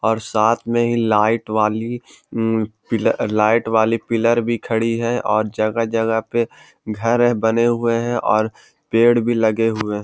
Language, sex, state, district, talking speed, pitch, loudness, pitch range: Hindi, male, Bihar, Gaya, 165 wpm, 115 Hz, -18 LUFS, 110-115 Hz